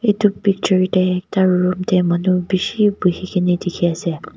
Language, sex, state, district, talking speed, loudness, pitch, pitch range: Nagamese, female, Nagaland, Kohima, 135 wpm, -17 LUFS, 185 Hz, 180-190 Hz